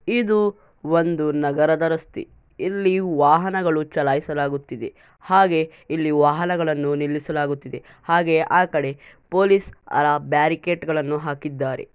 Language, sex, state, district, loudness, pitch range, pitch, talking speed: Kannada, female, Karnataka, Shimoga, -21 LUFS, 145-175 Hz, 155 Hz, 90 wpm